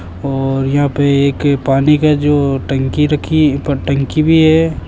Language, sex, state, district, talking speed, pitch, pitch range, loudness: Hindi, male, Rajasthan, Jaipur, 170 wpm, 140 Hz, 135-150 Hz, -13 LUFS